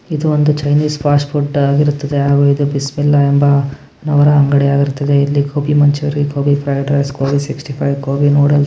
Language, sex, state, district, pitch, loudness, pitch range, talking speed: Kannada, male, Karnataka, Bijapur, 145 Hz, -14 LUFS, 140-145 Hz, 160 wpm